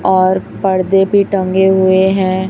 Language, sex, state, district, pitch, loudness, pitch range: Hindi, female, Chhattisgarh, Raipur, 190 Hz, -12 LUFS, 185-195 Hz